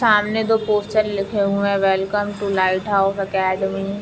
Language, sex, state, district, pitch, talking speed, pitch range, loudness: Hindi, female, Chhattisgarh, Raigarh, 200 Hz, 180 wpm, 195-210 Hz, -19 LUFS